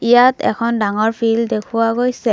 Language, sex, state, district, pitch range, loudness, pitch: Assamese, female, Assam, Kamrup Metropolitan, 220-235 Hz, -16 LUFS, 230 Hz